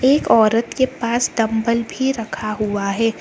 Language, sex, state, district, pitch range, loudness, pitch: Hindi, female, Karnataka, Bangalore, 215-245 Hz, -18 LUFS, 230 Hz